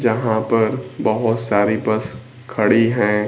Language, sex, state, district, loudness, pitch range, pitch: Hindi, female, Bihar, Kaimur, -18 LUFS, 110-120 Hz, 110 Hz